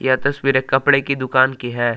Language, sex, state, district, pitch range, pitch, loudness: Hindi, male, Jharkhand, Palamu, 130-140 Hz, 130 Hz, -17 LUFS